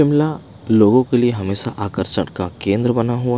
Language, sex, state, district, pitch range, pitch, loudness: Hindi, male, Himachal Pradesh, Shimla, 100-125 Hz, 120 Hz, -18 LUFS